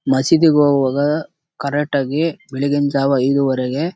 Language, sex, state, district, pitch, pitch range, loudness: Kannada, male, Karnataka, Chamarajanagar, 140 Hz, 135-150 Hz, -17 LUFS